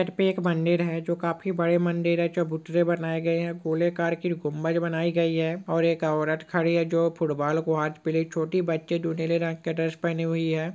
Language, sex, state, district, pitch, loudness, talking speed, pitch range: Hindi, male, West Bengal, Purulia, 165 Hz, -26 LUFS, 205 wpm, 160-170 Hz